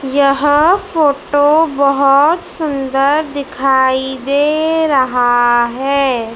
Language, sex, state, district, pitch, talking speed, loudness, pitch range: Hindi, male, Madhya Pradesh, Dhar, 280 Hz, 75 wpm, -13 LUFS, 265-300 Hz